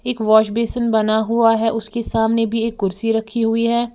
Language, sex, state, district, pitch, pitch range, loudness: Hindi, female, Uttar Pradesh, Lalitpur, 225 Hz, 220-230 Hz, -18 LUFS